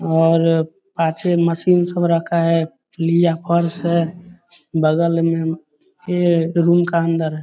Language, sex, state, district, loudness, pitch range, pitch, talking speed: Hindi, male, Bihar, Darbhanga, -18 LUFS, 165-175 Hz, 170 Hz, 115 wpm